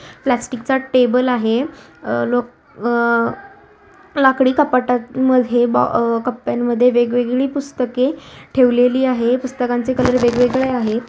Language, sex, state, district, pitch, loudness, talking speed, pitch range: Marathi, female, Maharashtra, Sindhudurg, 250 Hz, -17 LUFS, 90 wpm, 240-260 Hz